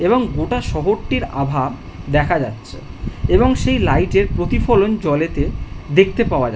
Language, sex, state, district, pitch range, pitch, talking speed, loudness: Bengali, male, West Bengal, Jhargram, 125-190 Hz, 145 Hz, 145 wpm, -17 LUFS